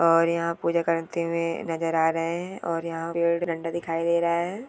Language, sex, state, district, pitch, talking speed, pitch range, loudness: Hindi, female, Chhattisgarh, Jashpur, 170 Hz, 215 wpm, 165-170 Hz, -26 LUFS